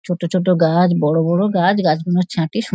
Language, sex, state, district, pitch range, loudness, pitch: Bengali, female, West Bengal, Dakshin Dinajpur, 165-185 Hz, -16 LUFS, 175 Hz